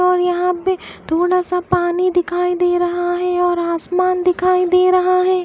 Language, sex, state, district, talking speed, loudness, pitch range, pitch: Hindi, female, Bihar, Katihar, 175 wpm, -17 LUFS, 355-365 Hz, 360 Hz